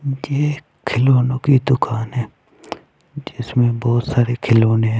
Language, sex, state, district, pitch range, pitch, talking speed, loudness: Hindi, male, Chhattisgarh, Raipur, 115-135 Hz, 120 Hz, 120 wpm, -18 LUFS